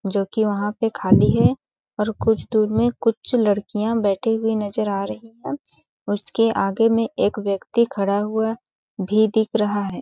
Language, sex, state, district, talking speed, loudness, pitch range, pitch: Hindi, female, Chhattisgarh, Balrampur, 175 wpm, -21 LUFS, 205-225 Hz, 215 Hz